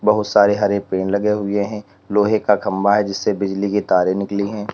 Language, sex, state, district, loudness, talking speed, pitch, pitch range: Hindi, male, Uttar Pradesh, Lalitpur, -18 LUFS, 205 wpm, 100 Hz, 100-105 Hz